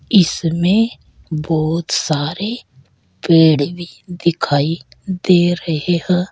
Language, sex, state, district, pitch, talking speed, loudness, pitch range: Hindi, female, Uttar Pradesh, Saharanpur, 170 Hz, 85 wpm, -17 LUFS, 155-180 Hz